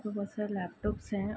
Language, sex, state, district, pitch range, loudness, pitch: Hindi, female, Bihar, Saharsa, 200-210 Hz, -36 LUFS, 205 Hz